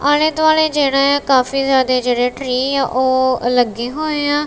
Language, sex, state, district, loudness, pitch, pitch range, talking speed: Punjabi, female, Punjab, Kapurthala, -15 LUFS, 275 Hz, 255-290 Hz, 160 wpm